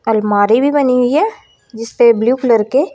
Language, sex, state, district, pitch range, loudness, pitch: Hindi, female, Haryana, Rohtak, 225-275 Hz, -13 LUFS, 245 Hz